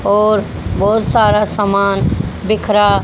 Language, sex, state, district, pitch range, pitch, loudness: Hindi, female, Haryana, Charkhi Dadri, 200-215 Hz, 210 Hz, -14 LUFS